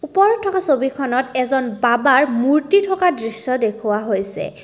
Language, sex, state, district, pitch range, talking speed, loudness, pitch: Assamese, female, Assam, Kamrup Metropolitan, 235-310 Hz, 130 wpm, -17 LUFS, 265 Hz